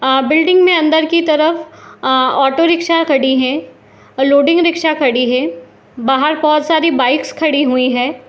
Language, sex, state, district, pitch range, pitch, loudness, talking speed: Hindi, female, Bihar, Madhepura, 265-320 Hz, 290 Hz, -13 LUFS, 165 wpm